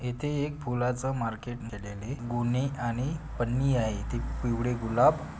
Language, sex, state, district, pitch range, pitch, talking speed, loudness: Marathi, male, Maharashtra, Pune, 115-130 Hz, 120 Hz, 135 wpm, -30 LUFS